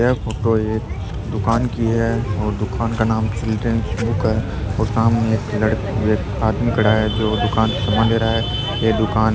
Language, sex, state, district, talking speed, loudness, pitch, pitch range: Rajasthani, male, Rajasthan, Churu, 200 wpm, -19 LUFS, 110 Hz, 110-115 Hz